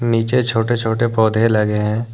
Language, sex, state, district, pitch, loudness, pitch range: Hindi, male, Jharkhand, Deoghar, 115 Hz, -17 LUFS, 110-120 Hz